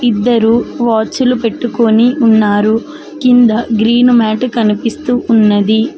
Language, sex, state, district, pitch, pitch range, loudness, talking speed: Telugu, female, Telangana, Mahabubabad, 235 Hz, 220-245 Hz, -11 LUFS, 100 wpm